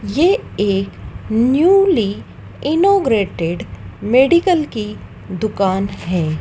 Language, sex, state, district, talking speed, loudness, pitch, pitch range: Hindi, female, Madhya Pradesh, Dhar, 75 wpm, -16 LUFS, 220 Hz, 195-325 Hz